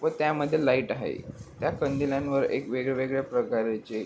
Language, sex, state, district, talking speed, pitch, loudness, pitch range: Marathi, male, Maharashtra, Pune, 135 wpm, 135 Hz, -28 LUFS, 125-145 Hz